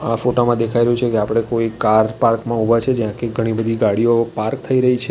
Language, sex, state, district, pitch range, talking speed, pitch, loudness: Gujarati, male, Gujarat, Valsad, 115-120 Hz, 260 wpm, 115 Hz, -17 LUFS